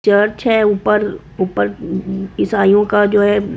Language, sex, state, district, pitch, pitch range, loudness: Hindi, female, Chhattisgarh, Korba, 205 Hz, 195-210 Hz, -15 LUFS